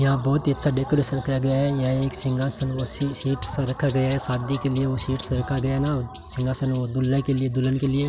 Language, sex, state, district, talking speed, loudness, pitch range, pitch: Hindi, male, Rajasthan, Bikaner, 280 wpm, -18 LUFS, 130-135 Hz, 135 Hz